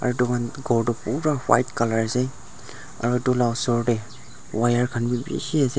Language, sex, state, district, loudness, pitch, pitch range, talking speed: Nagamese, male, Nagaland, Dimapur, -23 LUFS, 120 Hz, 120-125 Hz, 195 wpm